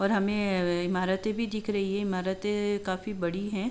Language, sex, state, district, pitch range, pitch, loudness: Hindi, female, Uttar Pradesh, Jalaun, 185-210 Hz, 200 Hz, -29 LUFS